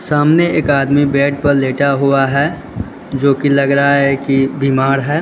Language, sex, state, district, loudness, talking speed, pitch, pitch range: Hindi, male, Uttar Pradesh, Lalitpur, -13 LUFS, 185 wpm, 140 Hz, 135-145 Hz